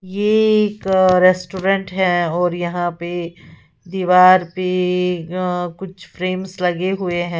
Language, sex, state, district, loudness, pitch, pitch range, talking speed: Hindi, female, Uttar Pradesh, Lalitpur, -17 LUFS, 180 Hz, 175-190 Hz, 120 wpm